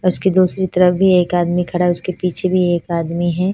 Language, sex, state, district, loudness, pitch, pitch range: Hindi, female, Punjab, Fazilka, -16 LUFS, 180 Hz, 175-185 Hz